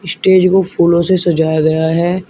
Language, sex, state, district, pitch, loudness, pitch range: Hindi, male, Uttar Pradesh, Shamli, 175 Hz, -12 LUFS, 165-185 Hz